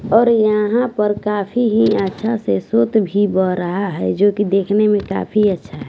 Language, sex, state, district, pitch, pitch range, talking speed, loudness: Hindi, female, Bihar, West Champaran, 205 Hz, 190-220 Hz, 195 wpm, -16 LUFS